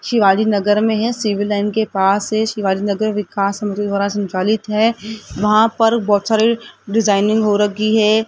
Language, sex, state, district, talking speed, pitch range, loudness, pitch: Hindi, female, Rajasthan, Jaipur, 165 wpm, 205-220 Hz, -16 LUFS, 210 Hz